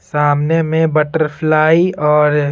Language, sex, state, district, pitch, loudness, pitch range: Hindi, male, Bihar, Patna, 155 Hz, -14 LUFS, 150-160 Hz